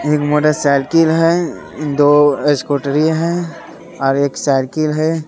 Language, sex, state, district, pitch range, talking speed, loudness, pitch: Angika, male, Bihar, Begusarai, 145-165 Hz, 125 wpm, -15 LUFS, 150 Hz